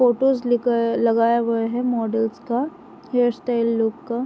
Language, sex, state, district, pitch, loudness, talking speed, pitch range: Hindi, female, Uttar Pradesh, Varanasi, 235 Hz, -21 LUFS, 170 wpm, 230-245 Hz